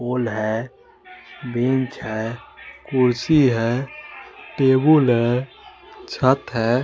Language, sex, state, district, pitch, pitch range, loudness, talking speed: Hindi, male, Bihar, West Champaran, 130 Hz, 120-170 Hz, -20 LUFS, 90 wpm